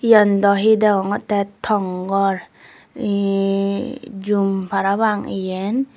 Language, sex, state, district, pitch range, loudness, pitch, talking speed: Chakma, female, Tripura, Dhalai, 195-210 Hz, -19 LUFS, 200 Hz, 100 wpm